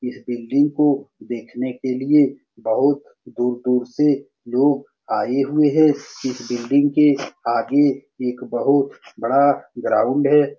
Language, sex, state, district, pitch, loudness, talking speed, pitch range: Hindi, male, Bihar, Saran, 135 Hz, -19 LUFS, 125 wpm, 125-145 Hz